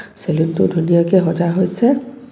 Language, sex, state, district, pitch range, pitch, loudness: Assamese, female, Assam, Kamrup Metropolitan, 170-235 Hz, 185 Hz, -16 LUFS